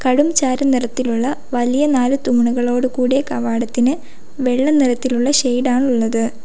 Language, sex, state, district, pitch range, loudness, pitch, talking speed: Malayalam, female, Kerala, Kollam, 245-270 Hz, -17 LUFS, 255 Hz, 95 wpm